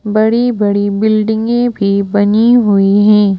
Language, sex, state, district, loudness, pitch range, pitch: Hindi, female, Madhya Pradesh, Bhopal, -11 LUFS, 200-225 Hz, 210 Hz